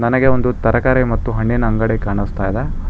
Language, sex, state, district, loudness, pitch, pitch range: Kannada, male, Karnataka, Bangalore, -17 LUFS, 115 Hz, 100-120 Hz